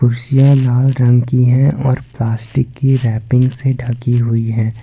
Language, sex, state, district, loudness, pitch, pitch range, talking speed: Hindi, male, Jharkhand, Ranchi, -14 LUFS, 125 Hz, 120-135 Hz, 175 wpm